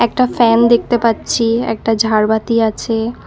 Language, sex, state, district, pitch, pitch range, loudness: Bengali, female, West Bengal, Cooch Behar, 230 Hz, 225-235 Hz, -14 LUFS